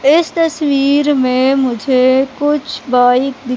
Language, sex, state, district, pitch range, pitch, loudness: Hindi, female, Madhya Pradesh, Katni, 255-290 Hz, 270 Hz, -13 LUFS